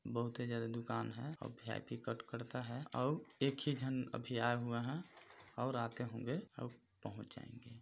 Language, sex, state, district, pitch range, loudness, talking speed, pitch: Hindi, male, Chhattisgarh, Balrampur, 115-130 Hz, -43 LUFS, 175 wpm, 120 Hz